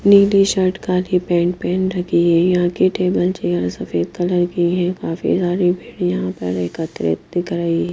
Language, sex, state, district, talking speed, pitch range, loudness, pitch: Hindi, female, Himachal Pradesh, Shimla, 180 wpm, 170-180 Hz, -18 LUFS, 175 Hz